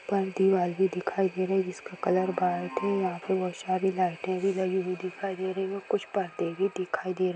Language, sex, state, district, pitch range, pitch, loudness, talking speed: Hindi, female, Bihar, East Champaran, 185-190 Hz, 185 Hz, -29 LUFS, 245 wpm